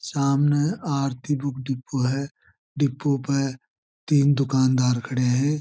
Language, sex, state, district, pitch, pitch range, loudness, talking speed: Marwari, male, Rajasthan, Churu, 140 Hz, 130-145 Hz, -23 LUFS, 120 wpm